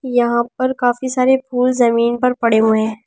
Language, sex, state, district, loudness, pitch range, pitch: Hindi, female, Delhi, New Delhi, -16 LUFS, 235-255 Hz, 245 Hz